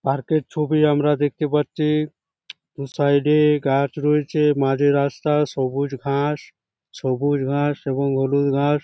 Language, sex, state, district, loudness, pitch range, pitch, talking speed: Bengali, male, West Bengal, Jhargram, -20 LUFS, 140-150 Hz, 145 Hz, 120 wpm